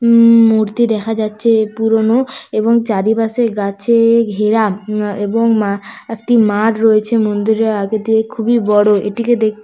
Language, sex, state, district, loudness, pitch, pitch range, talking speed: Bengali, female, West Bengal, Paschim Medinipur, -13 LUFS, 220 Hz, 210-230 Hz, 125 wpm